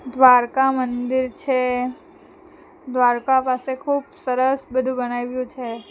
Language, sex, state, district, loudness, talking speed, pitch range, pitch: Gujarati, female, Gujarat, Valsad, -20 LUFS, 100 wpm, 250-270 Hz, 255 Hz